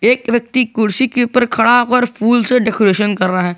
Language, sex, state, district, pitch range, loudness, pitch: Hindi, male, Jharkhand, Garhwa, 210-245 Hz, -14 LUFS, 235 Hz